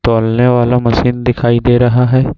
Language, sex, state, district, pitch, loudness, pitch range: Hindi, male, Jharkhand, Ranchi, 120 Hz, -12 LUFS, 120-125 Hz